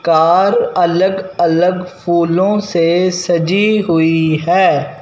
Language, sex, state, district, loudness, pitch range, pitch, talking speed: Hindi, male, Punjab, Fazilka, -13 LUFS, 165-190 Hz, 175 Hz, 85 wpm